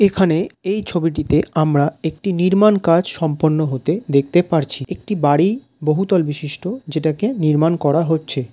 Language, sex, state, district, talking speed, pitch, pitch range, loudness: Bengali, male, West Bengal, Jalpaiguri, 135 wpm, 160 Hz, 150-185 Hz, -18 LUFS